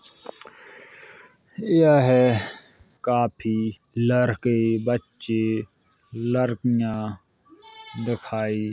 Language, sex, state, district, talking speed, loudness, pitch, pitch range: Hindi, male, Uttar Pradesh, Jalaun, 50 wpm, -23 LUFS, 120 Hz, 110-160 Hz